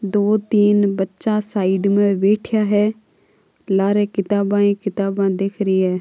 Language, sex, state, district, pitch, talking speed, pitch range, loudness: Marwari, female, Rajasthan, Nagaur, 200 Hz, 130 wpm, 195-205 Hz, -18 LUFS